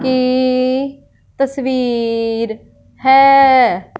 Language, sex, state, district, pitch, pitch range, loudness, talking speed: Hindi, female, Punjab, Fazilka, 255 Hz, 235-265 Hz, -14 LUFS, 45 wpm